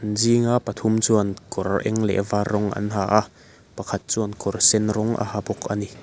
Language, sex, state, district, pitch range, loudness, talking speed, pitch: Mizo, male, Mizoram, Aizawl, 100-110 Hz, -22 LUFS, 200 wpm, 105 Hz